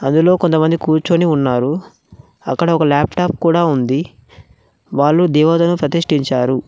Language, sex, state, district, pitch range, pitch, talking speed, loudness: Telugu, male, Telangana, Mahabubabad, 140-170 Hz, 155 Hz, 115 wpm, -15 LUFS